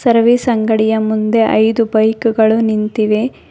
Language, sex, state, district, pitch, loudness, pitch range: Kannada, female, Karnataka, Bangalore, 220 Hz, -13 LUFS, 220-230 Hz